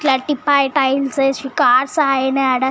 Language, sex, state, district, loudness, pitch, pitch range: Telugu, female, Telangana, Nalgonda, -16 LUFS, 275 Hz, 265-285 Hz